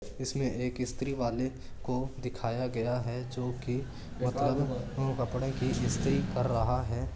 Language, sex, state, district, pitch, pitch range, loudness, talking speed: Marwari, male, Rajasthan, Churu, 125 Hz, 120-130 Hz, -33 LUFS, 135 wpm